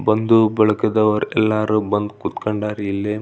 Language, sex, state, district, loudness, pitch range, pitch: Kannada, male, Karnataka, Belgaum, -18 LUFS, 105-110 Hz, 105 Hz